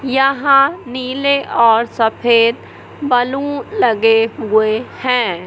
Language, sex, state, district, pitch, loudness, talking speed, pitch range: Hindi, male, Madhya Pradesh, Katni, 250 Hz, -14 LUFS, 90 wpm, 225-275 Hz